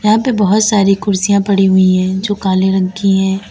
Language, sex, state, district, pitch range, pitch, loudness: Hindi, female, Uttar Pradesh, Lalitpur, 190-205 Hz, 195 Hz, -12 LUFS